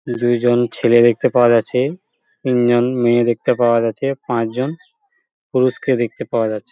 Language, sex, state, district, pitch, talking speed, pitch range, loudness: Bengali, male, West Bengal, Purulia, 120 Hz, 135 wpm, 120-130 Hz, -17 LUFS